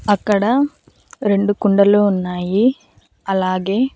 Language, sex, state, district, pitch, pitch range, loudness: Telugu, female, Andhra Pradesh, Annamaya, 205 Hz, 195-220 Hz, -17 LUFS